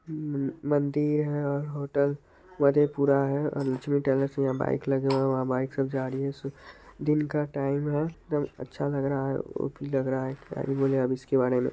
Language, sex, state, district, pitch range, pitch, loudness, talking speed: Hindi, male, Bihar, Madhepura, 135-145 Hz, 140 Hz, -28 LUFS, 195 wpm